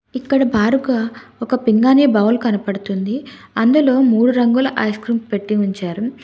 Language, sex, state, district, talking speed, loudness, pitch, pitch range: Telugu, female, Telangana, Hyderabad, 125 wpm, -16 LUFS, 235 Hz, 215-260 Hz